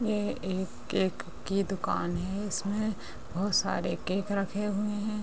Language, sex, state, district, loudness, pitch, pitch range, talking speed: Hindi, female, Bihar, Madhepura, -31 LUFS, 195 Hz, 185-205 Hz, 150 wpm